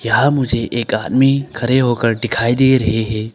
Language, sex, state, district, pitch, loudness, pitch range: Hindi, male, Arunachal Pradesh, Longding, 120 Hz, -15 LUFS, 115-130 Hz